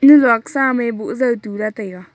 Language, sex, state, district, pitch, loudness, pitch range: Wancho, female, Arunachal Pradesh, Longding, 235 Hz, -16 LUFS, 210-260 Hz